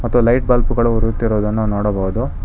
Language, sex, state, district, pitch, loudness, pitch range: Kannada, male, Karnataka, Bangalore, 115 Hz, -17 LUFS, 105-120 Hz